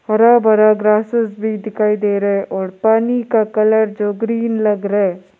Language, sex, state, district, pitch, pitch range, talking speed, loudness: Hindi, male, Arunachal Pradesh, Lower Dibang Valley, 215 Hz, 205-220 Hz, 190 wpm, -15 LUFS